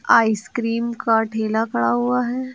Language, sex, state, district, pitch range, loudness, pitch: Hindi, female, Uttar Pradesh, Lucknow, 215-235 Hz, -20 LUFS, 225 Hz